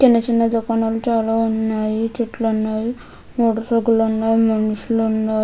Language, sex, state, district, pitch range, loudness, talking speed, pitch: Telugu, female, Andhra Pradesh, Krishna, 220-230 Hz, -19 LUFS, 100 wpm, 225 Hz